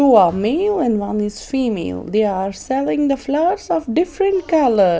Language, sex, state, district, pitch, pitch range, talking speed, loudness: English, female, Maharashtra, Mumbai Suburban, 265 Hz, 210-330 Hz, 180 wpm, -18 LUFS